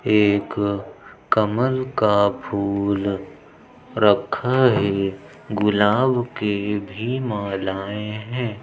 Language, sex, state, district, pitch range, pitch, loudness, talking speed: Hindi, male, Uttar Pradesh, Budaun, 100-115 Hz, 105 Hz, -21 LUFS, 75 wpm